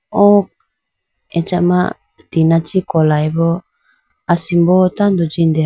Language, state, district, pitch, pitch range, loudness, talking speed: Idu Mishmi, Arunachal Pradesh, Lower Dibang Valley, 175 Hz, 165-185 Hz, -14 LUFS, 115 wpm